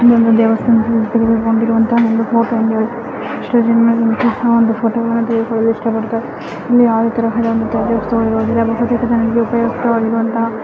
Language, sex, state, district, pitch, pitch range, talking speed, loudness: Kannada, female, Karnataka, Chamarajanagar, 230 Hz, 225-235 Hz, 85 wpm, -14 LUFS